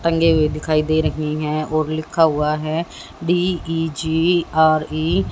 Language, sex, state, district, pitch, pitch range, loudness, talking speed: Hindi, female, Haryana, Jhajjar, 155 Hz, 155-165 Hz, -19 LUFS, 180 wpm